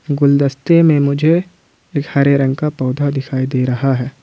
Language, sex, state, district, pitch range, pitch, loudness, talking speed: Hindi, male, Jharkhand, Ranchi, 135-150 Hz, 140 Hz, -15 LUFS, 170 wpm